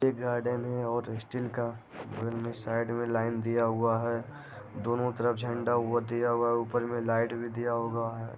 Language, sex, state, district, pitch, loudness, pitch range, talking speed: Hindi, male, Bihar, Jamui, 120 Hz, -31 LUFS, 115-120 Hz, 195 wpm